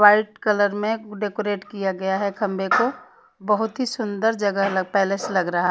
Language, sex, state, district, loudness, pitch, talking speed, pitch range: Hindi, female, Punjab, Pathankot, -22 LUFS, 205 Hz, 190 wpm, 195-215 Hz